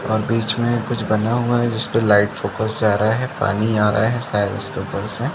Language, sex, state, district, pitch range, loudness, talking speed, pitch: Hindi, male, Chhattisgarh, Rajnandgaon, 105-120 Hz, -19 LUFS, 235 wpm, 110 Hz